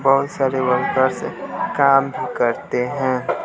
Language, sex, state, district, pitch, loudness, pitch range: Hindi, male, Bihar, West Champaran, 130 Hz, -19 LUFS, 125-135 Hz